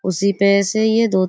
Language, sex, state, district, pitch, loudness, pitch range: Hindi, female, Uttar Pradesh, Budaun, 200 Hz, -16 LUFS, 190-220 Hz